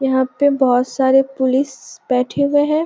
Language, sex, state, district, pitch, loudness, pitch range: Hindi, female, Bihar, Jamui, 265 Hz, -16 LUFS, 260-285 Hz